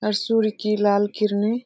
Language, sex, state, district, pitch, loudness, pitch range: Hindi, female, Bihar, Araria, 210 Hz, -21 LUFS, 205-220 Hz